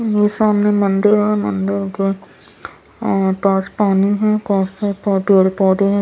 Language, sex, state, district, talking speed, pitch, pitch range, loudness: Hindi, female, Bihar, Patna, 150 wpm, 200 Hz, 195-210 Hz, -16 LUFS